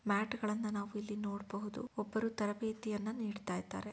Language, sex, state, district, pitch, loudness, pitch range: Kannada, female, Karnataka, Shimoga, 210 Hz, -40 LUFS, 205-220 Hz